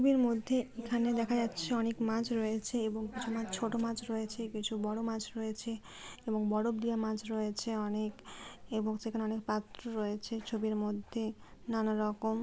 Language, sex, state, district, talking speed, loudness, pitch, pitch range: Bengali, female, West Bengal, Kolkata, 155 wpm, -35 LUFS, 220 Hz, 215-230 Hz